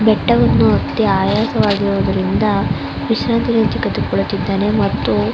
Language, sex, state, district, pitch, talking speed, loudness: Kannada, female, Karnataka, Mysore, 115 Hz, 100 wpm, -16 LUFS